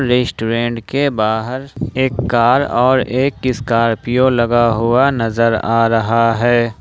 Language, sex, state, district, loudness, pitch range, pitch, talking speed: Hindi, male, Jharkhand, Ranchi, -15 LUFS, 115-130 Hz, 120 Hz, 125 wpm